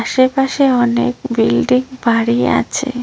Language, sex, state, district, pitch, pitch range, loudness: Bengali, female, West Bengal, Cooch Behar, 250 Hz, 240-265 Hz, -15 LUFS